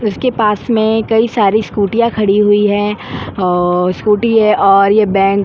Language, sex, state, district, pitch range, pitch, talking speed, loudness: Hindi, female, Goa, North and South Goa, 200-220 Hz, 210 Hz, 175 wpm, -12 LUFS